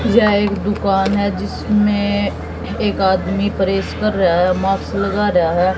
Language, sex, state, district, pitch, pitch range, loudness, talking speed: Hindi, female, Haryana, Jhajjar, 195 Hz, 190-205 Hz, -17 LUFS, 155 wpm